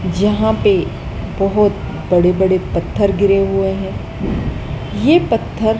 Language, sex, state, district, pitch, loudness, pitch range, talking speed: Hindi, female, Madhya Pradesh, Dhar, 195 Hz, -16 LUFS, 190-210 Hz, 115 wpm